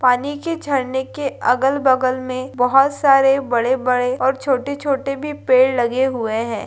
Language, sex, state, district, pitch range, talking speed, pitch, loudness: Maithili, female, Bihar, Lakhisarai, 250-275 Hz, 145 wpm, 260 Hz, -18 LUFS